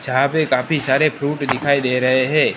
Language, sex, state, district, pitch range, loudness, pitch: Hindi, male, Gujarat, Gandhinagar, 130-150 Hz, -17 LUFS, 140 Hz